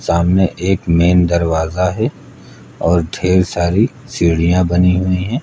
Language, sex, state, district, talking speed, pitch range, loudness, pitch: Hindi, male, Uttar Pradesh, Lucknow, 130 wpm, 85-95 Hz, -15 LUFS, 90 Hz